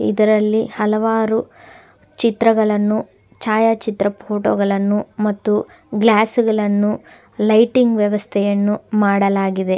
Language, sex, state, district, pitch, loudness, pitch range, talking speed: Kannada, female, Karnataka, Dakshina Kannada, 210 Hz, -17 LUFS, 205-220 Hz, 75 wpm